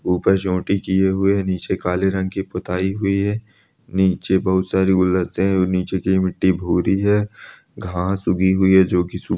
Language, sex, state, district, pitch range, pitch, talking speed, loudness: Hindi, male, Chhattisgarh, Korba, 90-95 Hz, 95 Hz, 185 wpm, -19 LUFS